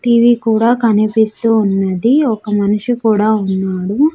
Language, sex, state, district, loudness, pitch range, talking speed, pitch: Telugu, female, Andhra Pradesh, Sri Satya Sai, -13 LUFS, 205-235 Hz, 115 wpm, 220 Hz